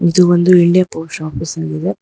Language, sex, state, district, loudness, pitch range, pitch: Kannada, female, Karnataka, Bangalore, -14 LUFS, 160-180 Hz, 170 Hz